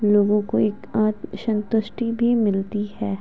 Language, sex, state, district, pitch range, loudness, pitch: Hindi, female, Uttar Pradesh, Gorakhpur, 205-225 Hz, -22 LUFS, 215 Hz